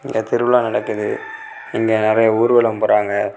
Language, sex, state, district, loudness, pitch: Tamil, male, Tamil Nadu, Kanyakumari, -17 LUFS, 115 Hz